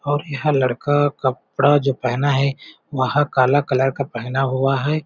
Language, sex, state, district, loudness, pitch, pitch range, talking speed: Hindi, male, Chhattisgarh, Balrampur, -19 LUFS, 140 Hz, 130-145 Hz, 165 wpm